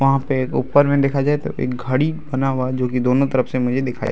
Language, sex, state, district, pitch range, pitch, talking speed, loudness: Hindi, male, Bihar, Araria, 130-140 Hz, 130 Hz, 290 wpm, -19 LUFS